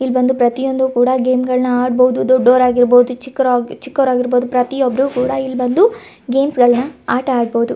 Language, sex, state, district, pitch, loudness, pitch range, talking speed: Kannada, female, Karnataka, Gulbarga, 255 Hz, -14 LUFS, 245-265 Hz, 155 wpm